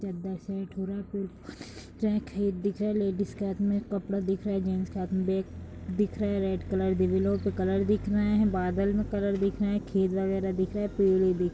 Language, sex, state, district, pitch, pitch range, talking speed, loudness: Hindi, female, Uttar Pradesh, Jalaun, 195 Hz, 190-205 Hz, 230 wpm, -29 LUFS